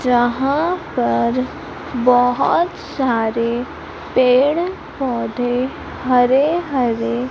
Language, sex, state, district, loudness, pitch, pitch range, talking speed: Hindi, female, Madhya Pradesh, Umaria, -18 LUFS, 250 Hz, 240-275 Hz, 65 wpm